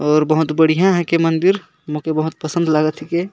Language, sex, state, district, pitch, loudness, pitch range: Sadri, male, Chhattisgarh, Jashpur, 160 Hz, -17 LUFS, 155-170 Hz